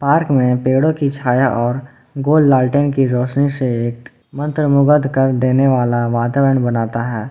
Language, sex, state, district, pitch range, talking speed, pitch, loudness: Hindi, male, Jharkhand, Ranchi, 125-140 Hz, 165 wpm, 130 Hz, -15 LUFS